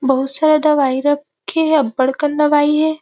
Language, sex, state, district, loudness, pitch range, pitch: Chhattisgarhi, female, Chhattisgarh, Rajnandgaon, -15 LUFS, 270-305 Hz, 295 Hz